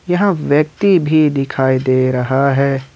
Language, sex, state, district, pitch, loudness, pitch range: Hindi, male, Jharkhand, Ranchi, 140 Hz, -14 LUFS, 130-155 Hz